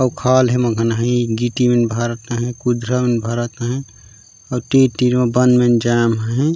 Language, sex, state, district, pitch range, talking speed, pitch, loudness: Chhattisgarhi, male, Chhattisgarh, Raigarh, 115-125 Hz, 175 wpm, 120 Hz, -17 LUFS